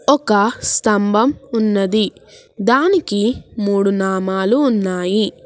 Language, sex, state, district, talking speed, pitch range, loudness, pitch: Telugu, female, Telangana, Hyderabad, 75 wpm, 200-245 Hz, -16 LUFS, 210 Hz